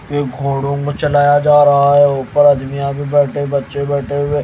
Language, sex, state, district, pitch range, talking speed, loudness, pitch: Hindi, male, Haryana, Jhajjar, 140-145 Hz, 190 wpm, -14 LUFS, 145 Hz